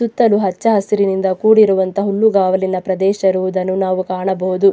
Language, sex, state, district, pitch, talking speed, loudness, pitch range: Kannada, female, Karnataka, Dakshina Kannada, 190 Hz, 115 wpm, -15 LUFS, 185-205 Hz